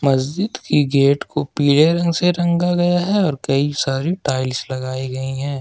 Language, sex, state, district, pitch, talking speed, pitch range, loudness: Hindi, male, Jharkhand, Ranchi, 145 Hz, 180 wpm, 135-175 Hz, -18 LUFS